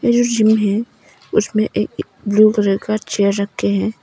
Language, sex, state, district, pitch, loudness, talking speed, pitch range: Hindi, female, Arunachal Pradesh, Papum Pare, 210 Hz, -17 LUFS, 120 wpm, 200-215 Hz